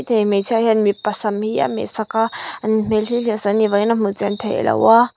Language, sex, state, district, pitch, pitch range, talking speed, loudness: Mizo, female, Mizoram, Aizawl, 215 Hz, 210-225 Hz, 255 wpm, -18 LUFS